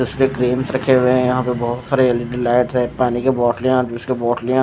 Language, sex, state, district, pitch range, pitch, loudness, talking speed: Hindi, male, Himachal Pradesh, Shimla, 120-130 Hz, 125 Hz, -17 LUFS, 270 wpm